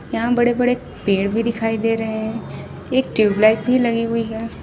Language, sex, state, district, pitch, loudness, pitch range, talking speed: Hindi, female, Jharkhand, Ranchi, 225 Hz, -19 LUFS, 220-240 Hz, 180 wpm